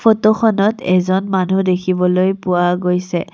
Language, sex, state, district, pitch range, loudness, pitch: Assamese, female, Assam, Kamrup Metropolitan, 180-200 Hz, -15 LUFS, 185 Hz